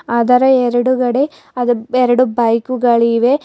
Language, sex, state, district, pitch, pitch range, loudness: Kannada, female, Karnataka, Bidar, 245 Hz, 235-255 Hz, -14 LUFS